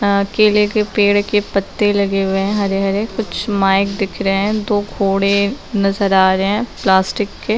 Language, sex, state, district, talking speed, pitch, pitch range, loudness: Hindi, female, Maharashtra, Aurangabad, 190 wpm, 200 Hz, 195-210 Hz, -16 LUFS